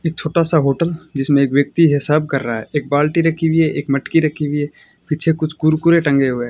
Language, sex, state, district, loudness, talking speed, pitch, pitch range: Hindi, male, Rajasthan, Bikaner, -16 LUFS, 250 wpm, 150 Hz, 140-160 Hz